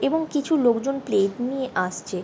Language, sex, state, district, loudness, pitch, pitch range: Bengali, female, West Bengal, Paschim Medinipur, -23 LUFS, 255 Hz, 200-275 Hz